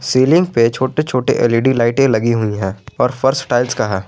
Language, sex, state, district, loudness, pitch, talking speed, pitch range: Hindi, male, Jharkhand, Garhwa, -15 LUFS, 120 Hz, 205 wpm, 115-135 Hz